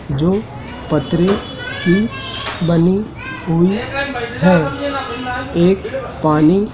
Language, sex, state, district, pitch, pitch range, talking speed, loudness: Hindi, male, Madhya Pradesh, Dhar, 180 Hz, 165-215 Hz, 70 wpm, -17 LUFS